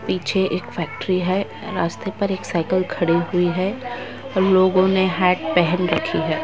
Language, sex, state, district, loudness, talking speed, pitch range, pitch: Hindi, female, West Bengal, Purulia, -20 LUFS, 165 wpm, 175-190 Hz, 185 Hz